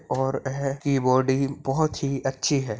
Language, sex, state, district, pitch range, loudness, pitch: Hindi, male, Chhattisgarh, Balrampur, 130-140 Hz, -25 LUFS, 135 Hz